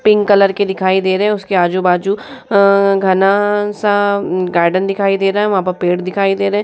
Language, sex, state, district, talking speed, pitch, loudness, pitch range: Hindi, female, Uttar Pradesh, Muzaffarnagar, 215 wpm, 195 Hz, -14 LUFS, 185-205 Hz